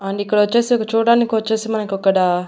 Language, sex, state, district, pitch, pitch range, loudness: Telugu, female, Andhra Pradesh, Annamaya, 215 Hz, 195-225 Hz, -17 LUFS